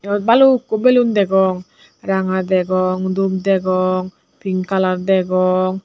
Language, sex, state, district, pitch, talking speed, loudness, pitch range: Chakma, female, Tripura, Dhalai, 190 Hz, 115 wpm, -16 LUFS, 185-195 Hz